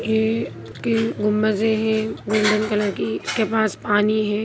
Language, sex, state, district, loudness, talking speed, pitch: Hindi, female, Bihar, Jamui, -21 LUFS, 160 wpm, 210 Hz